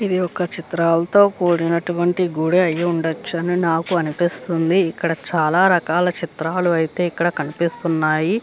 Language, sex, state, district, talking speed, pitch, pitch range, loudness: Telugu, female, Andhra Pradesh, Chittoor, 120 wpm, 170 Hz, 165-180 Hz, -19 LUFS